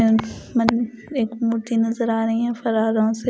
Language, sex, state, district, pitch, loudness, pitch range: Hindi, female, Punjab, Pathankot, 230 Hz, -21 LUFS, 225-235 Hz